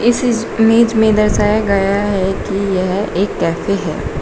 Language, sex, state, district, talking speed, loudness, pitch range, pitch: Hindi, female, Uttar Pradesh, Shamli, 170 wpm, -15 LUFS, 195-220 Hz, 205 Hz